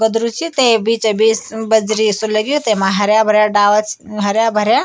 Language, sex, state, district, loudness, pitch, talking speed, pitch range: Garhwali, male, Uttarakhand, Tehri Garhwal, -14 LUFS, 220 Hz, 185 wpm, 215-225 Hz